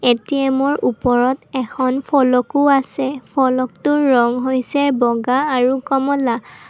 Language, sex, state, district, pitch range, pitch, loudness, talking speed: Assamese, female, Assam, Kamrup Metropolitan, 250-275 Hz, 260 Hz, -17 LUFS, 105 wpm